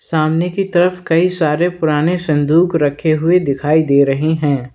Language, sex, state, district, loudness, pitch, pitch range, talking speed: Hindi, male, Uttar Pradesh, Lalitpur, -15 LUFS, 160 Hz, 150-175 Hz, 165 wpm